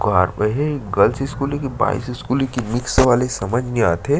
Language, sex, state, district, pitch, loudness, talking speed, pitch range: Chhattisgarhi, male, Chhattisgarh, Sarguja, 125 Hz, -19 LUFS, 215 wpm, 110-135 Hz